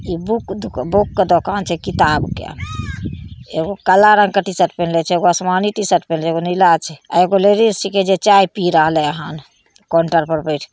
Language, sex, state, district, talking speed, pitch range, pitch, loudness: Maithili, female, Bihar, Samastipur, 195 wpm, 160-195 Hz, 175 Hz, -15 LUFS